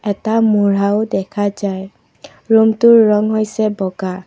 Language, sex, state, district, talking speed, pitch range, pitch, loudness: Assamese, female, Assam, Kamrup Metropolitan, 110 wpm, 200-220 Hz, 210 Hz, -14 LUFS